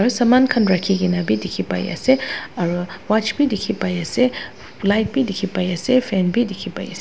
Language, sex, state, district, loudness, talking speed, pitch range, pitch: Nagamese, female, Nagaland, Dimapur, -19 LUFS, 215 wpm, 185-245 Hz, 210 Hz